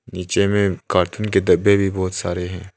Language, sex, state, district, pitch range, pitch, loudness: Hindi, male, Arunachal Pradesh, Longding, 90-100 Hz, 95 Hz, -19 LUFS